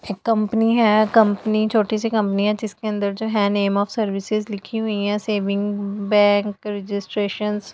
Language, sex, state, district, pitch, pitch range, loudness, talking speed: Hindi, female, Delhi, New Delhi, 210 Hz, 205-215 Hz, -20 LUFS, 165 wpm